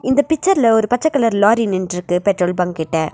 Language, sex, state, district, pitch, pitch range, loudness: Tamil, female, Tamil Nadu, Nilgiris, 210 Hz, 180-245 Hz, -16 LUFS